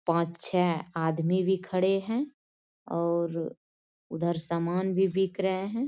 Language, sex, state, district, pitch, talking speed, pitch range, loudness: Hindi, female, Bihar, Bhagalpur, 175 Hz, 130 wpm, 170-190 Hz, -29 LUFS